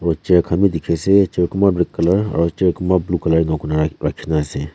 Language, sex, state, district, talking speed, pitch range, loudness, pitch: Nagamese, male, Nagaland, Kohima, 200 wpm, 80-90 Hz, -17 LUFS, 85 Hz